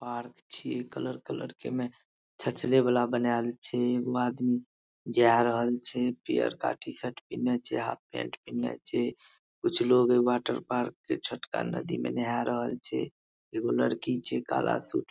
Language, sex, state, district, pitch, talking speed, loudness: Maithili, male, Bihar, Madhepura, 120 Hz, 160 wpm, -30 LUFS